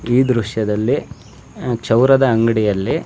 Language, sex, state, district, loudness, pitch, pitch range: Kannada, male, Karnataka, Shimoga, -16 LUFS, 115 Hz, 110-125 Hz